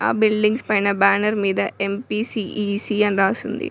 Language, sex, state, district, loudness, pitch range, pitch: Telugu, female, Telangana, Mahabubabad, -20 LUFS, 200-215 Hz, 210 Hz